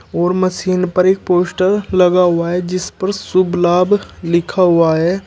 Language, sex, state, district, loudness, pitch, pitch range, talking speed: Hindi, male, Uttar Pradesh, Shamli, -14 LUFS, 180 Hz, 175-185 Hz, 170 wpm